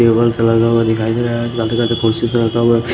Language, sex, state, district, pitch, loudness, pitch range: Hindi, male, Himachal Pradesh, Shimla, 115 Hz, -15 LUFS, 115-120 Hz